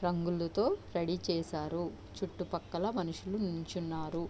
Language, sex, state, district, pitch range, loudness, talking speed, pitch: Telugu, female, Andhra Pradesh, Visakhapatnam, 165-180 Hz, -36 LUFS, 85 wpm, 170 Hz